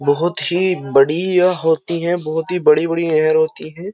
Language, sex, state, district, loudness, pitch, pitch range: Hindi, male, Uttar Pradesh, Jyotiba Phule Nagar, -16 LUFS, 165 Hz, 155-180 Hz